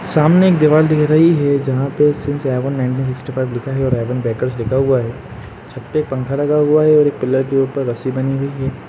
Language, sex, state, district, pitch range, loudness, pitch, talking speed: Hindi, male, Uttar Pradesh, Jalaun, 130-150 Hz, -16 LUFS, 135 Hz, 245 wpm